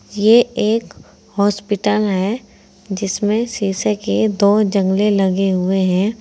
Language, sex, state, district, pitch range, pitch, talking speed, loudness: Hindi, female, Uttar Pradesh, Saharanpur, 195-215 Hz, 205 Hz, 105 wpm, -16 LUFS